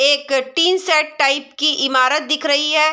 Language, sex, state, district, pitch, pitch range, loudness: Hindi, female, Bihar, Sitamarhi, 295 Hz, 275-310 Hz, -16 LUFS